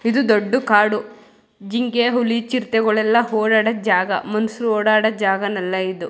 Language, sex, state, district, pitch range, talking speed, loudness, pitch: Kannada, female, Karnataka, Mysore, 210-230 Hz, 130 wpm, -18 LUFS, 215 Hz